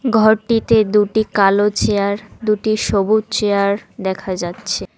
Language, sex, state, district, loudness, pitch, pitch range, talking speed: Bengali, female, West Bengal, Cooch Behar, -17 LUFS, 210 Hz, 200-220 Hz, 110 wpm